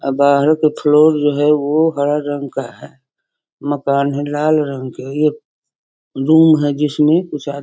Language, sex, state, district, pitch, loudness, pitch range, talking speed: Hindi, female, Bihar, Sitamarhi, 145 Hz, -15 LUFS, 140-150 Hz, 175 wpm